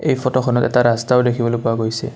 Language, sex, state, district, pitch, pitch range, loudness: Assamese, male, Assam, Kamrup Metropolitan, 120 Hz, 115-125 Hz, -17 LUFS